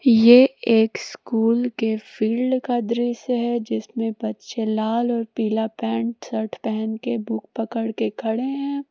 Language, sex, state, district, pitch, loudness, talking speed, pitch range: Hindi, female, Jharkhand, Palamu, 225 Hz, -22 LUFS, 150 wpm, 220-240 Hz